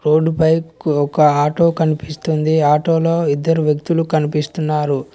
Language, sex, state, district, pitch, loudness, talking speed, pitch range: Telugu, male, Telangana, Mahabubabad, 155 Hz, -16 LUFS, 130 wpm, 150-165 Hz